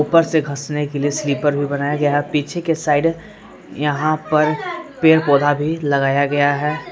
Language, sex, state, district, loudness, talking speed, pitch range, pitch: Hindi, male, Jharkhand, Palamu, -18 LUFS, 180 wpm, 145-160 Hz, 150 Hz